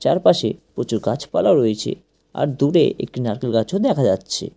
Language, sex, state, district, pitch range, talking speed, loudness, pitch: Bengali, male, West Bengal, Cooch Behar, 115-140 Hz, 145 wpm, -19 LUFS, 120 Hz